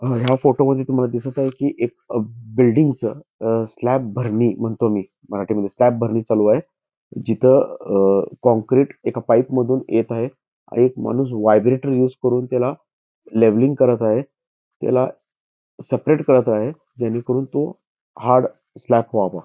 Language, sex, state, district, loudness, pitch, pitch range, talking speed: Marathi, male, Karnataka, Belgaum, -19 LUFS, 125 Hz, 115-130 Hz, 120 wpm